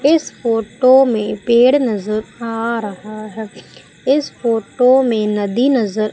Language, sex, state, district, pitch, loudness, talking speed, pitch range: Hindi, female, Madhya Pradesh, Umaria, 230 Hz, -16 LUFS, 125 wpm, 215-255 Hz